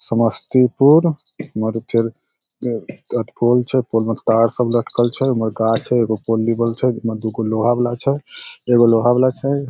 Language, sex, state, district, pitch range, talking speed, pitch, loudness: Maithili, male, Bihar, Samastipur, 115-130 Hz, 160 wpm, 120 Hz, -18 LUFS